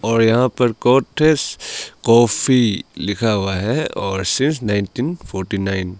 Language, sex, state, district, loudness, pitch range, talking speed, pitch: Hindi, male, Arunachal Pradesh, Longding, -18 LUFS, 100-130 Hz, 140 wpm, 115 Hz